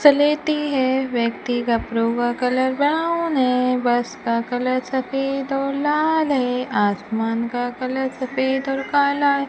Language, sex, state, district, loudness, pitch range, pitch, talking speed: Hindi, female, Rajasthan, Bikaner, -21 LUFS, 245-280 Hz, 260 Hz, 135 wpm